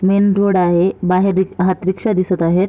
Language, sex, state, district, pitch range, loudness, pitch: Marathi, female, Maharashtra, Sindhudurg, 180-195 Hz, -15 LUFS, 185 Hz